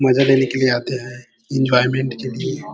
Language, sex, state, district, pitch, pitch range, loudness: Hindi, male, Chhattisgarh, Bilaspur, 130 Hz, 125-130 Hz, -18 LUFS